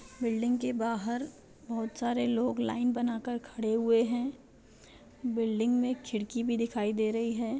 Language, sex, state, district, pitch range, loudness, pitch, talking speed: Hindi, female, Bihar, Jahanabad, 230-245 Hz, -31 LUFS, 240 Hz, 160 wpm